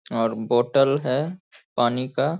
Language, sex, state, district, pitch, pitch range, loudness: Hindi, male, Bihar, Saharsa, 130 Hz, 120-145 Hz, -23 LUFS